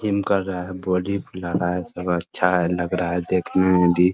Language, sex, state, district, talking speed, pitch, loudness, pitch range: Hindi, male, Bihar, Muzaffarpur, 245 wpm, 90 Hz, -22 LUFS, 90-95 Hz